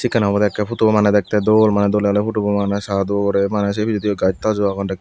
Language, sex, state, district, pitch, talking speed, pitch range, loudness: Chakma, male, Tripura, Dhalai, 105 Hz, 265 wpm, 100-105 Hz, -17 LUFS